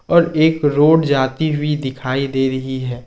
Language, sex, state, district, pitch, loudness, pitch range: Hindi, male, Jharkhand, Ranchi, 145 Hz, -16 LUFS, 130-155 Hz